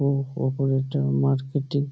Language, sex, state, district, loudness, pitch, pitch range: Bengali, male, West Bengal, Malda, -24 LUFS, 135 Hz, 130-140 Hz